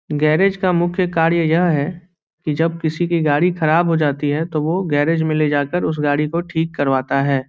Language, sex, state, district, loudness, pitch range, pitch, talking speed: Hindi, male, Bihar, Saran, -18 LUFS, 150-170 Hz, 160 Hz, 225 wpm